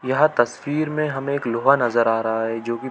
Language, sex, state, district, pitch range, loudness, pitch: Hindi, male, Chhattisgarh, Bilaspur, 115-140 Hz, -21 LUFS, 130 Hz